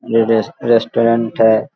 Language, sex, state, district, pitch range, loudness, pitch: Hindi, male, Bihar, Vaishali, 110-115 Hz, -14 LUFS, 115 Hz